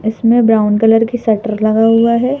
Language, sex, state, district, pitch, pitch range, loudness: Hindi, female, Madhya Pradesh, Bhopal, 225 Hz, 220-235 Hz, -12 LUFS